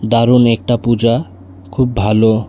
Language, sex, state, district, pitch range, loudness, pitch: Bengali, male, Tripura, West Tripura, 105-120 Hz, -13 LUFS, 115 Hz